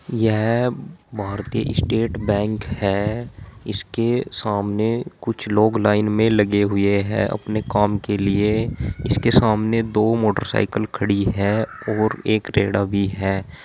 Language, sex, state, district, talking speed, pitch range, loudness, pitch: Hindi, male, Uttar Pradesh, Saharanpur, 125 wpm, 100-110 Hz, -20 LUFS, 105 Hz